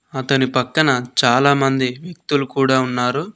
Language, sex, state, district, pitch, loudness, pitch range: Telugu, male, Telangana, Mahabubabad, 135 Hz, -17 LUFS, 130-145 Hz